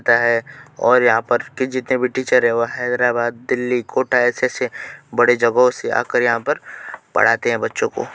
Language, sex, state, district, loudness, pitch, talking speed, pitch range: Hindi, male, Uttar Pradesh, Deoria, -18 LUFS, 125 Hz, 160 wpm, 120-130 Hz